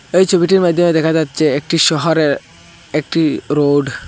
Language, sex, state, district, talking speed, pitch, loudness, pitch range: Bengali, male, Assam, Hailakandi, 145 wpm, 160 Hz, -14 LUFS, 150-170 Hz